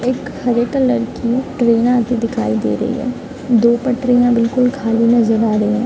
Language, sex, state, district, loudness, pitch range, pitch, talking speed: Hindi, female, Bihar, East Champaran, -15 LUFS, 230-250 Hz, 240 Hz, 205 wpm